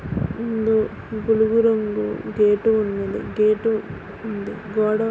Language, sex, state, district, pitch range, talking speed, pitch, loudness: Telugu, female, Andhra Pradesh, Guntur, 200-220 Hz, 95 wpm, 215 Hz, -21 LUFS